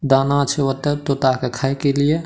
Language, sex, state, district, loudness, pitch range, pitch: Maithili, male, Bihar, Madhepura, -19 LUFS, 135-145 Hz, 140 Hz